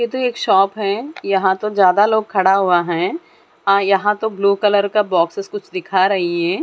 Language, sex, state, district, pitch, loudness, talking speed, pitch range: Hindi, female, Chandigarh, Chandigarh, 200 Hz, -17 LUFS, 210 wpm, 190-210 Hz